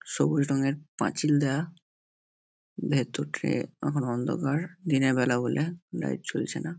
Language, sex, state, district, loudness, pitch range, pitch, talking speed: Bengali, male, West Bengal, North 24 Parganas, -28 LUFS, 135-165 Hz, 145 Hz, 125 wpm